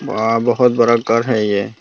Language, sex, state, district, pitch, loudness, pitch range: Hindi, male, Tripura, Dhalai, 115 Hz, -15 LUFS, 110-120 Hz